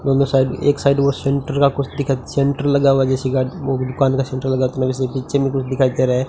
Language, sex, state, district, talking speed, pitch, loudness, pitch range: Hindi, male, Rajasthan, Bikaner, 250 wpm, 135 Hz, -18 LUFS, 130-140 Hz